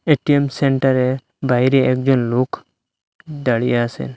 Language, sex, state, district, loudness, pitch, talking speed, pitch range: Bengali, male, Assam, Hailakandi, -17 LUFS, 130 Hz, 100 wpm, 125-135 Hz